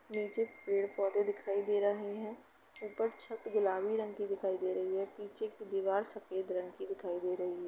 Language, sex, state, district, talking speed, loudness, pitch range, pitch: Hindi, female, Uttar Pradesh, Etah, 205 wpm, -37 LUFS, 190-215 Hz, 205 Hz